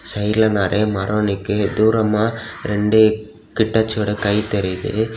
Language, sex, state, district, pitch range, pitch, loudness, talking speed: Tamil, male, Tamil Nadu, Kanyakumari, 105-110 Hz, 105 Hz, -18 LUFS, 105 wpm